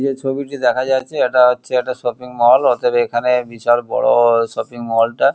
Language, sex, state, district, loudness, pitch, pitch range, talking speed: Bengali, male, West Bengal, Kolkata, -16 LUFS, 125 Hz, 120-130 Hz, 180 wpm